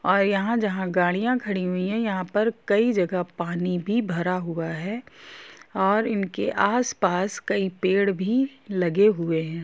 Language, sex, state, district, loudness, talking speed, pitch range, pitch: Hindi, female, Jharkhand, Jamtara, -24 LUFS, 155 wpm, 180-215 Hz, 195 Hz